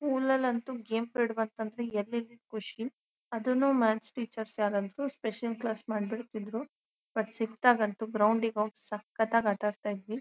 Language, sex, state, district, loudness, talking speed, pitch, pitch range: Kannada, female, Karnataka, Shimoga, -32 LUFS, 115 wpm, 225 Hz, 215-240 Hz